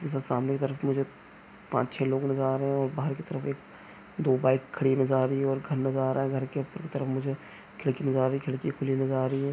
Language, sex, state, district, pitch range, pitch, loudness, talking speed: Hindi, male, Chhattisgarh, Bastar, 130-140 Hz, 135 Hz, -29 LUFS, 290 wpm